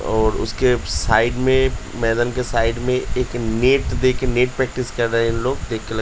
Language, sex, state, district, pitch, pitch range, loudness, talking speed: Hindi, male, Uttar Pradesh, Hamirpur, 120 Hz, 115-125 Hz, -19 LUFS, 170 wpm